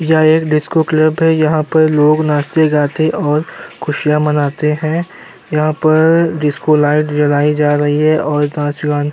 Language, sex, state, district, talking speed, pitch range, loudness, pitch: Hindi, male, Uttar Pradesh, Jyotiba Phule Nagar, 170 wpm, 150-155 Hz, -13 LUFS, 150 Hz